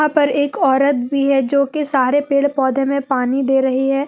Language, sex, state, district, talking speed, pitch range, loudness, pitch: Hindi, female, Jharkhand, Palamu, 220 wpm, 265-280 Hz, -16 LUFS, 275 Hz